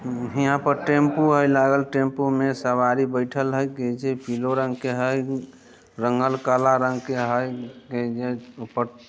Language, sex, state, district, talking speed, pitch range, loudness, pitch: Hindi, male, Bihar, Muzaffarpur, 160 wpm, 125-135 Hz, -23 LUFS, 130 Hz